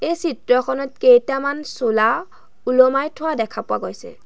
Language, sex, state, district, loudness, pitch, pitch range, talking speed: Assamese, female, Assam, Sonitpur, -19 LUFS, 270 Hz, 250-310 Hz, 125 wpm